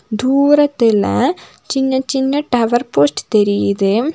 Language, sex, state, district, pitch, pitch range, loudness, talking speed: Tamil, female, Tamil Nadu, Nilgiris, 250 Hz, 215-275 Hz, -15 LUFS, 85 wpm